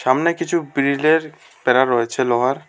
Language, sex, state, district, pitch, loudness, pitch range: Bengali, male, West Bengal, Alipurduar, 140 Hz, -18 LUFS, 130-160 Hz